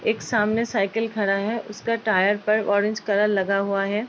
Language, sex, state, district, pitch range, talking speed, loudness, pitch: Hindi, female, Uttar Pradesh, Ghazipur, 200-220 Hz, 190 wpm, -22 LUFS, 210 Hz